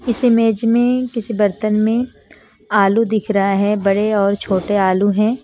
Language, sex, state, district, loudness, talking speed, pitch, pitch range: Hindi, female, Himachal Pradesh, Shimla, -16 LUFS, 165 wpm, 215 Hz, 200-230 Hz